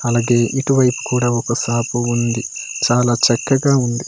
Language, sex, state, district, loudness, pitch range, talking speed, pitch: Telugu, male, Andhra Pradesh, Manyam, -17 LUFS, 120-125 Hz, 145 wpm, 120 Hz